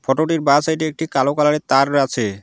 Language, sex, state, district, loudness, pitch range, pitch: Bengali, male, West Bengal, Alipurduar, -17 LUFS, 135-155 Hz, 145 Hz